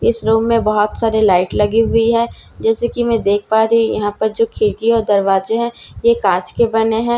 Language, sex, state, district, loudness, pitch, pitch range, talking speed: Hindi, female, Bihar, Katihar, -15 LUFS, 225 Hz, 210-230 Hz, 225 wpm